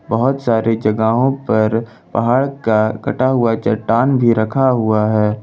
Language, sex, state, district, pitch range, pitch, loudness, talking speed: Hindi, male, Jharkhand, Ranchi, 110-130 Hz, 115 Hz, -16 LUFS, 145 wpm